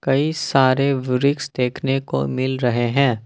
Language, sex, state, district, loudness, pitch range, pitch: Hindi, male, Assam, Kamrup Metropolitan, -20 LUFS, 125-140 Hz, 130 Hz